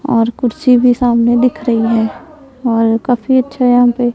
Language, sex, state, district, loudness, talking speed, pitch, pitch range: Hindi, female, Punjab, Pathankot, -13 LUFS, 175 wpm, 245 Hz, 235-255 Hz